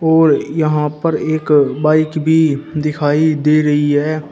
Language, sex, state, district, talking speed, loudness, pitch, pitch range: Hindi, male, Uttar Pradesh, Shamli, 140 wpm, -14 LUFS, 155 Hz, 150-155 Hz